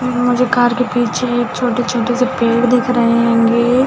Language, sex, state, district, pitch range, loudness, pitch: Hindi, female, Chhattisgarh, Bilaspur, 240-250 Hz, -14 LUFS, 245 Hz